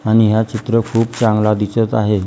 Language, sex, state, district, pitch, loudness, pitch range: Marathi, female, Maharashtra, Gondia, 110 Hz, -15 LUFS, 105-115 Hz